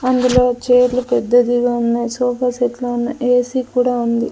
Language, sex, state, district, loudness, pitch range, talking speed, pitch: Telugu, female, Andhra Pradesh, Sri Satya Sai, -16 LUFS, 240-250 Hz, 140 wpm, 245 Hz